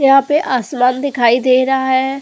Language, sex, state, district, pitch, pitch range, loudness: Hindi, female, Goa, North and South Goa, 265 Hz, 255-275 Hz, -14 LUFS